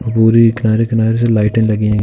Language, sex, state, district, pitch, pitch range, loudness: Hindi, male, Uttar Pradesh, Jalaun, 110 Hz, 110-115 Hz, -13 LUFS